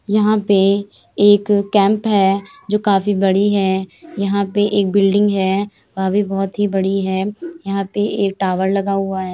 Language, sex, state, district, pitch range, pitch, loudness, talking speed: Hindi, female, Uttar Pradesh, Jyotiba Phule Nagar, 195-205 Hz, 200 Hz, -17 LUFS, 175 wpm